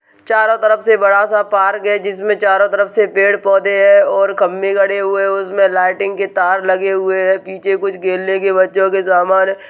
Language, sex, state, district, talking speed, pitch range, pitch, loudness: Hindi, male, Uttar Pradesh, Budaun, 210 wpm, 190-200 Hz, 195 Hz, -13 LUFS